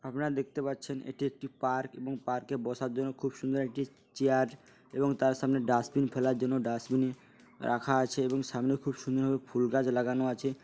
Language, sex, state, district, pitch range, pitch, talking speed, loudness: Bengali, male, West Bengal, Paschim Medinipur, 130-135 Hz, 130 Hz, 180 wpm, -32 LUFS